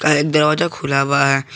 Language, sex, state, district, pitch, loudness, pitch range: Hindi, male, Jharkhand, Garhwa, 145 Hz, -16 LUFS, 140-150 Hz